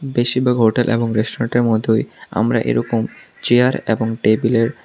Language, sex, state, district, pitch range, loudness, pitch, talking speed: Bengali, male, Tripura, South Tripura, 110-120 Hz, -17 LUFS, 115 Hz, 135 wpm